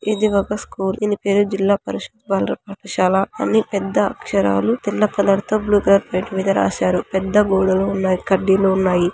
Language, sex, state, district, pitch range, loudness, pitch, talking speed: Telugu, female, Andhra Pradesh, Anantapur, 190-205 Hz, -18 LUFS, 195 Hz, 165 wpm